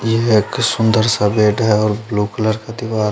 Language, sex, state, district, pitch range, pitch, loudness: Hindi, male, Chandigarh, Chandigarh, 105-115 Hz, 110 Hz, -16 LUFS